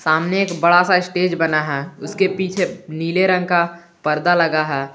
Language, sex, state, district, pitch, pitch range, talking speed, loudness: Hindi, male, Jharkhand, Garhwa, 170 Hz, 155-180 Hz, 180 wpm, -18 LUFS